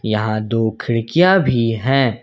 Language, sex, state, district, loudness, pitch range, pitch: Hindi, male, Jharkhand, Ranchi, -17 LUFS, 110-135 Hz, 115 Hz